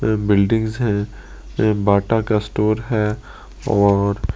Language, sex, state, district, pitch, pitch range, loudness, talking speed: Hindi, male, Delhi, New Delhi, 105 Hz, 100-110 Hz, -18 LUFS, 95 wpm